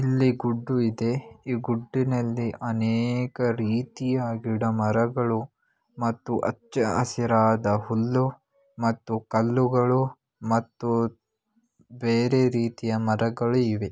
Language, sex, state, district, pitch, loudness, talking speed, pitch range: Kannada, male, Karnataka, Belgaum, 120 Hz, -25 LUFS, 80 wpm, 115-125 Hz